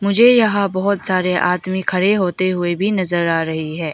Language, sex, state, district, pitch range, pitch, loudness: Hindi, female, Arunachal Pradesh, Lower Dibang Valley, 175-200 Hz, 185 Hz, -17 LUFS